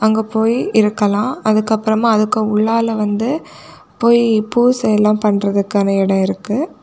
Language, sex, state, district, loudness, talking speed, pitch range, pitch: Tamil, female, Tamil Nadu, Kanyakumari, -15 LUFS, 125 wpm, 210-230 Hz, 215 Hz